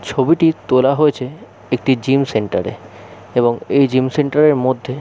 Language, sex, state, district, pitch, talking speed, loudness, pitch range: Bengali, male, West Bengal, Jalpaiguri, 130 Hz, 155 wpm, -16 LUFS, 125-150 Hz